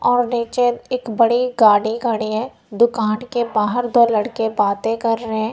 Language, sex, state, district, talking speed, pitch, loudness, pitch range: Hindi, female, Punjab, Kapurthala, 175 wpm, 230 Hz, -18 LUFS, 220-240 Hz